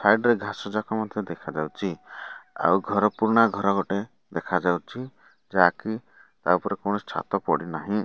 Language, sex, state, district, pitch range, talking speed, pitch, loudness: Odia, male, Odisha, Malkangiri, 95-110 Hz, 150 wpm, 100 Hz, -25 LUFS